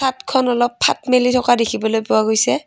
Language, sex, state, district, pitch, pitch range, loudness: Assamese, female, Assam, Kamrup Metropolitan, 245 Hz, 230-260 Hz, -16 LUFS